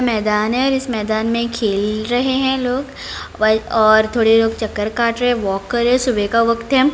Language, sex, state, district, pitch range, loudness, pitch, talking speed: Hindi, female, Bihar, Saran, 215-245 Hz, -17 LUFS, 230 Hz, 205 wpm